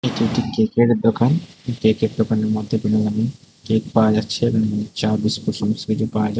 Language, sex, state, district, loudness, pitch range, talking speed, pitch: Bengali, male, Tripura, West Tripura, -20 LUFS, 110-115 Hz, 180 wpm, 110 Hz